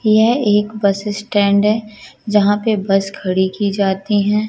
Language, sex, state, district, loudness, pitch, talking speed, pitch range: Hindi, female, Madhya Pradesh, Katni, -16 LUFS, 205 Hz, 160 wpm, 200-215 Hz